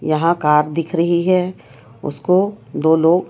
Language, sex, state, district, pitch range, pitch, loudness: Hindi, female, Chhattisgarh, Raipur, 155-180 Hz, 170 Hz, -17 LUFS